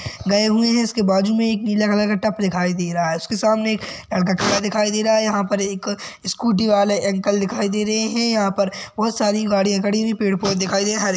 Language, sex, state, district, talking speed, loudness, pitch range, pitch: Hindi, male, Maharashtra, Sindhudurg, 240 wpm, -19 LUFS, 195-215 Hz, 205 Hz